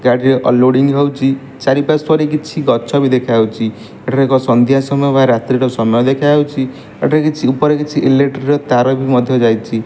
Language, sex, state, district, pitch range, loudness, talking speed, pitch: Odia, male, Odisha, Malkangiri, 125-140 Hz, -13 LUFS, 165 wpm, 135 Hz